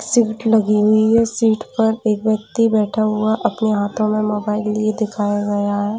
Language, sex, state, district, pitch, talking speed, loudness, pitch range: Hindi, female, Jharkhand, Jamtara, 215 Hz, 180 wpm, -17 LUFS, 210-220 Hz